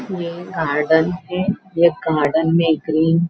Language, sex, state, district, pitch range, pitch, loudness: Hindi, female, Maharashtra, Nagpur, 160-180 Hz, 170 Hz, -18 LUFS